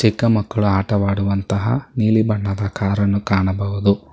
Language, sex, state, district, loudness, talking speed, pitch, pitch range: Kannada, male, Karnataka, Bangalore, -19 LUFS, 100 wpm, 100 Hz, 100-110 Hz